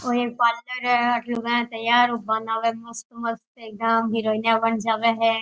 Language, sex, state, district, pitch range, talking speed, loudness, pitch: Rajasthani, female, Rajasthan, Churu, 225-240 Hz, 190 wpm, -22 LUFS, 230 Hz